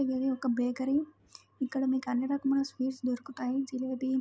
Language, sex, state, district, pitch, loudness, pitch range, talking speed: Telugu, female, Andhra Pradesh, Krishna, 260 Hz, -32 LUFS, 255-270 Hz, 130 wpm